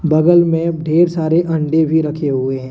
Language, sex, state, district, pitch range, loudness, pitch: Hindi, male, Jharkhand, Deoghar, 150-170 Hz, -15 LUFS, 160 Hz